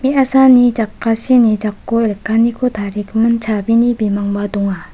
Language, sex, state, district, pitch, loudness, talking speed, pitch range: Garo, female, Meghalaya, West Garo Hills, 225 Hz, -14 LUFS, 95 wpm, 210-240 Hz